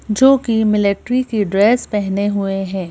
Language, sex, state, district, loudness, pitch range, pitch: Hindi, female, Madhya Pradesh, Bhopal, -16 LUFS, 200-230 Hz, 210 Hz